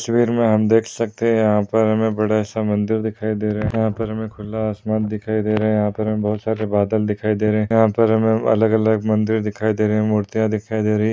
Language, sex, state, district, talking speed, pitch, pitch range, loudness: Hindi, male, Maharashtra, Aurangabad, 260 wpm, 110 Hz, 105-110 Hz, -19 LUFS